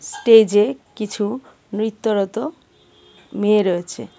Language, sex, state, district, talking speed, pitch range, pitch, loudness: Bengali, female, Tripura, West Tripura, 70 wpm, 205-225 Hz, 215 Hz, -18 LUFS